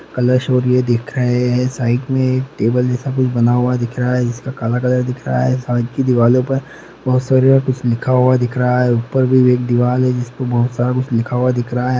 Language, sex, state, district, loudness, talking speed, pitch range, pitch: Hindi, male, Bihar, Lakhisarai, -16 LUFS, 250 wpm, 125-130 Hz, 125 Hz